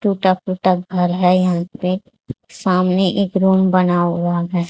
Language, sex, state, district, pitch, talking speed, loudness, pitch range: Hindi, female, Haryana, Charkhi Dadri, 185 Hz, 155 wpm, -17 LUFS, 180-190 Hz